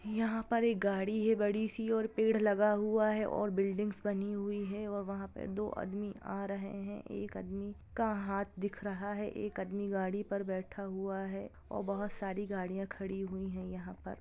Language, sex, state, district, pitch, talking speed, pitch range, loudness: Hindi, female, Bihar, Gopalganj, 200 Hz, 205 wpm, 195-210 Hz, -36 LUFS